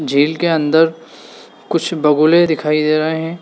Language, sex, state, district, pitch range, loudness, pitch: Hindi, male, Uttar Pradesh, Lalitpur, 150-165 Hz, -15 LUFS, 160 Hz